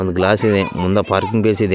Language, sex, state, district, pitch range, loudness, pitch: Kannada, male, Karnataka, Raichur, 95-105 Hz, -16 LUFS, 100 Hz